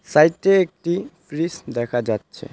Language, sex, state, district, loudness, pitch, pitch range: Bengali, male, West Bengal, Alipurduar, -21 LUFS, 165 Hz, 120-180 Hz